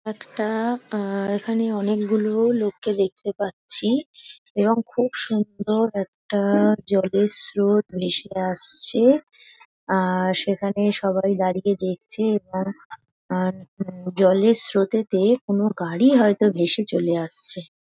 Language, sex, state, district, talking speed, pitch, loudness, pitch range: Bengali, female, West Bengal, Paschim Medinipur, 115 wpm, 205 Hz, -22 LUFS, 190-220 Hz